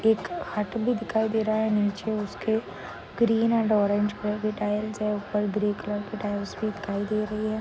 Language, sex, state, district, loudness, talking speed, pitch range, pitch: Marathi, female, Maharashtra, Sindhudurg, -27 LUFS, 195 wpm, 205-220 Hz, 210 Hz